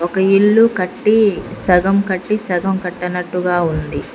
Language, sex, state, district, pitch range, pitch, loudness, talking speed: Telugu, female, Telangana, Mahabubabad, 180-200 Hz, 190 Hz, -16 LUFS, 130 wpm